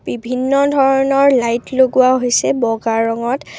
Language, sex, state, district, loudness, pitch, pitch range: Assamese, female, Assam, Kamrup Metropolitan, -15 LUFS, 255 Hz, 235-270 Hz